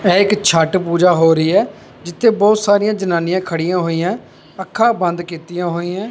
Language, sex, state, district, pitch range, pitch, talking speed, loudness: Punjabi, male, Punjab, Pathankot, 170-205 Hz, 180 Hz, 165 wpm, -15 LUFS